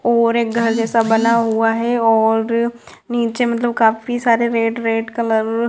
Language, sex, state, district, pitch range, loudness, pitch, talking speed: Hindi, female, Bihar, Gopalganj, 225-235 Hz, -17 LUFS, 230 Hz, 170 wpm